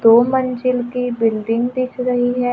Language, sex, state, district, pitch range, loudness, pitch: Hindi, female, Maharashtra, Gondia, 235-250 Hz, -18 LUFS, 245 Hz